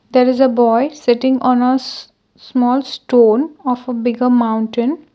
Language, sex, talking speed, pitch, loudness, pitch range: English, female, 165 wpm, 250 Hz, -15 LUFS, 240-260 Hz